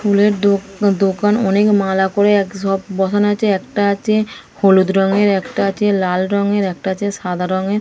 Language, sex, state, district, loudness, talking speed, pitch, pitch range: Bengali, female, West Bengal, Dakshin Dinajpur, -16 LUFS, 170 wpm, 200 Hz, 190-205 Hz